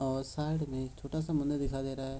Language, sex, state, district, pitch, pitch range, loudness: Hindi, male, Bihar, Supaul, 135 Hz, 135-150 Hz, -35 LUFS